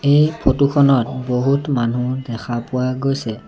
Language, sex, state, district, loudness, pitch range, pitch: Assamese, male, Assam, Sonitpur, -18 LUFS, 125-140 Hz, 130 Hz